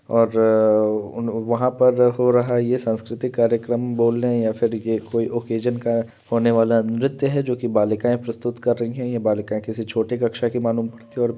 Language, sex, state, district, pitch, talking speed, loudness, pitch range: Hindi, male, Uttar Pradesh, Varanasi, 115 Hz, 205 wpm, -21 LUFS, 115-120 Hz